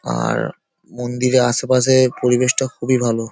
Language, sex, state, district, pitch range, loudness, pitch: Bengali, male, West Bengal, Paschim Medinipur, 120-130 Hz, -17 LUFS, 125 Hz